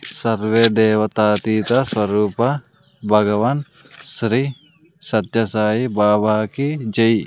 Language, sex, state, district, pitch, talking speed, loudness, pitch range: Telugu, male, Andhra Pradesh, Sri Satya Sai, 115 Hz, 80 wpm, -18 LUFS, 105-135 Hz